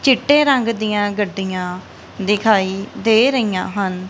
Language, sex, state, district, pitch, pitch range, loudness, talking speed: Punjabi, female, Punjab, Kapurthala, 205 Hz, 190-230 Hz, -17 LUFS, 115 wpm